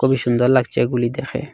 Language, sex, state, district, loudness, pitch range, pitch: Bengali, male, Assam, Hailakandi, -18 LUFS, 120-130 Hz, 125 Hz